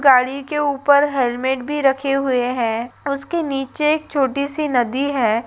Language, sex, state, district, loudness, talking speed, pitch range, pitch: Hindi, female, Rajasthan, Nagaur, -19 LUFS, 165 wpm, 255-285 Hz, 275 Hz